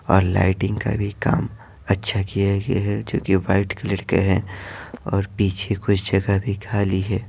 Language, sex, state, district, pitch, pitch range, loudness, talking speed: Hindi, male, Bihar, Patna, 100 Hz, 95-105 Hz, -22 LUFS, 180 wpm